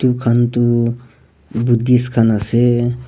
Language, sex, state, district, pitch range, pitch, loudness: Nagamese, male, Nagaland, Kohima, 115-120 Hz, 120 Hz, -15 LUFS